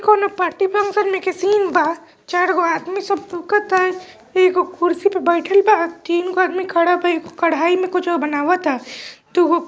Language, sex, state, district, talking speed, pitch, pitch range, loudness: Bhojpuri, female, Bihar, East Champaran, 185 wpm, 360 Hz, 340-380 Hz, -18 LUFS